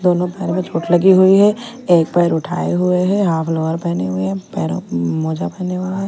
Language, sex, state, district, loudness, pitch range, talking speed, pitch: Hindi, female, Delhi, New Delhi, -16 LUFS, 160-185 Hz, 225 wpm, 175 Hz